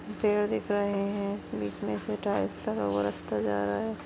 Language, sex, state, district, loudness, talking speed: Hindi, female, Uttar Pradesh, Deoria, -30 LUFS, 205 wpm